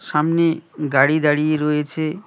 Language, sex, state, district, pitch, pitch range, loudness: Bengali, male, West Bengal, Cooch Behar, 155 Hz, 150-160 Hz, -19 LUFS